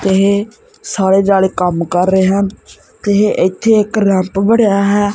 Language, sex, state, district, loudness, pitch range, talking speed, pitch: Punjabi, male, Punjab, Kapurthala, -13 LUFS, 190-205 Hz, 150 wpm, 200 Hz